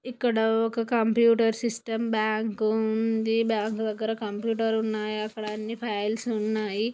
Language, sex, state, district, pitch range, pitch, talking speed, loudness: Telugu, female, Andhra Pradesh, Guntur, 215-225 Hz, 220 Hz, 120 wpm, -26 LUFS